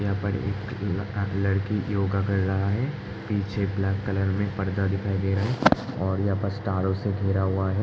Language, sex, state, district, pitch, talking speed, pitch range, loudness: Hindi, male, Uttar Pradesh, Hamirpur, 100 Hz, 185 wpm, 95-100 Hz, -26 LUFS